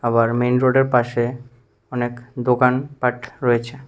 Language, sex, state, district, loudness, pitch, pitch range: Bengali, male, Tripura, West Tripura, -20 LUFS, 125 Hz, 120-125 Hz